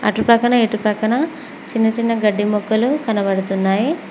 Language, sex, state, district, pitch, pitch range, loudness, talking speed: Telugu, female, Telangana, Mahabubabad, 225 Hz, 210-245 Hz, -17 LUFS, 100 wpm